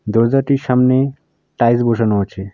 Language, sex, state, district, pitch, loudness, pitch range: Bengali, female, West Bengal, Alipurduar, 120 Hz, -15 LUFS, 110-135 Hz